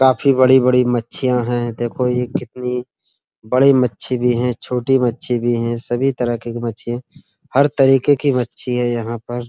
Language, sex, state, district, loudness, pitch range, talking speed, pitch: Hindi, male, Uttar Pradesh, Muzaffarnagar, -17 LUFS, 120-130 Hz, 165 wpm, 125 Hz